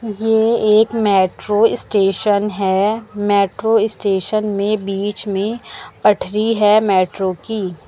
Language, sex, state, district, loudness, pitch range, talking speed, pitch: Hindi, female, Uttar Pradesh, Lucknow, -16 LUFS, 195-220 Hz, 105 wpm, 210 Hz